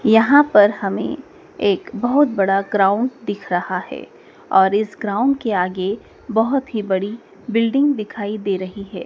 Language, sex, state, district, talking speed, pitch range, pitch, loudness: Hindi, female, Madhya Pradesh, Dhar, 150 wpm, 195-250 Hz, 210 Hz, -18 LUFS